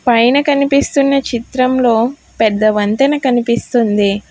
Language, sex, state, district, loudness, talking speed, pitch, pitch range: Telugu, female, Telangana, Hyderabad, -13 LUFS, 85 wpm, 240 Hz, 225-275 Hz